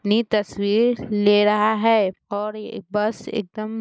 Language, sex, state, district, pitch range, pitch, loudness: Hindi, female, Bihar, Muzaffarpur, 205-220 Hz, 215 Hz, -21 LUFS